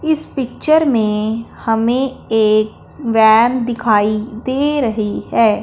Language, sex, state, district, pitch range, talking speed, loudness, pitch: Hindi, female, Punjab, Fazilka, 215-260 Hz, 105 wpm, -15 LUFS, 230 Hz